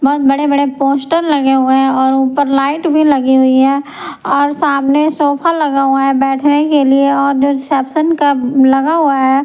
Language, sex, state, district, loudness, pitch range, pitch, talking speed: Hindi, female, Punjab, Pathankot, -12 LUFS, 270-290 Hz, 280 Hz, 170 wpm